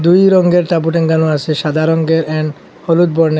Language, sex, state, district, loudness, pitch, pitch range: Bengali, male, Assam, Hailakandi, -13 LUFS, 160 Hz, 155-170 Hz